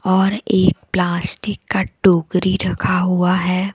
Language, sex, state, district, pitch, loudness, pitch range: Hindi, female, Jharkhand, Deoghar, 185 Hz, -17 LUFS, 180-190 Hz